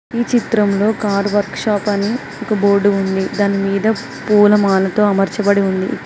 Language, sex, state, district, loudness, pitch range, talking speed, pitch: Telugu, female, Telangana, Mahabubabad, -15 LUFS, 200-215 Hz, 140 wpm, 205 Hz